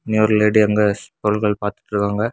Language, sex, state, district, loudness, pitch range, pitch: Tamil, male, Tamil Nadu, Kanyakumari, -18 LUFS, 105-110 Hz, 105 Hz